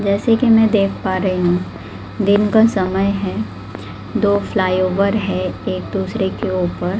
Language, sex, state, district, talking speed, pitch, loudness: Hindi, female, Delhi, New Delhi, 155 wpm, 190 Hz, -17 LUFS